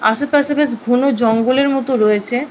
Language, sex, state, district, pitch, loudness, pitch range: Bengali, female, West Bengal, Purulia, 255 Hz, -15 LUFS, 225-280 Hz